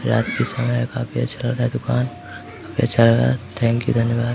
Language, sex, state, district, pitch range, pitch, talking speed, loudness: Hindi, male, Bihar, Samastipur, 95-120 Hz, 115 Hz, 220 wpm, -20 LUFS